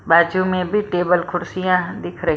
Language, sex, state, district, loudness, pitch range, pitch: Hindi, female, Maharashtra, Mumbai Suburban, -19 LUFS, 175-185 Hz, 180 Hz